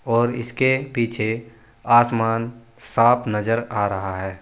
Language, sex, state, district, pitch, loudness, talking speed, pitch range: Hindi, male, Uttar Pradesh, Saharanpur, 115 Hz, -21 LUFS, 120 wpm, 110-120 Hz